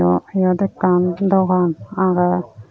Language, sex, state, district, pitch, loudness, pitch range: Chakma, female, Tripura, Unakoti, 180 Hz, -18 LUFS, 175-190 Hz